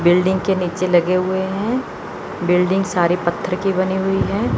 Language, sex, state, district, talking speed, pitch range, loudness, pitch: Hindi, male, Chandigarh, Chandigarh, 170 wpm, 180-190 Hz, -18 LUFS, 185 Hz